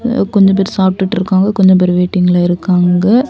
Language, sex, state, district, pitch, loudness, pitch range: Tamil, female, Tamil Nadu, Kanyakumari, 190 Hz, -11 LUFS, 180-195 Hz